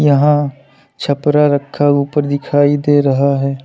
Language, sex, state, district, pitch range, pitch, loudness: Hindi, male, Uttar Pradesh, Lalitpur, 140-145 Hz, 145 Hz, -14 LUFS